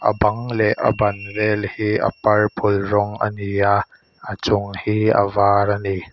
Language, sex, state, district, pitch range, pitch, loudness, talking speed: Mizo, male, Mizoram, Aizawl, 100-105 Hz, 105 Hz, -19 LUFS, 195 wpm